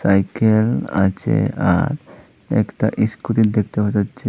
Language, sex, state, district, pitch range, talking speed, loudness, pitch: Bengali, male, Tripura, Unakoti, 100-110 Hz, 110 wpm, -18 LUFS, 105 Hz